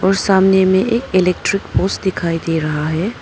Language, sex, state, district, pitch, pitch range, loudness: Hindi, female, Arunachal Pradesh, Papum Pare, 190 Hz, 170-195 Hz, -16 LUFS